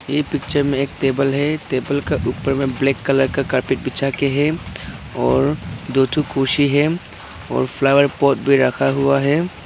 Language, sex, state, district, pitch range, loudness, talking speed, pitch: Hindi, male, Arunachal Pradesh, Lower Dibang Valley, 135-145 Hz, -18 LUFS, 175 wpm, 140 Hz